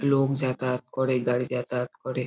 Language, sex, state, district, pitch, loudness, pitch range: Bengali, male, West Bengal, Jhargram, 125 Hz, -27 LUFS, 125-130 Hz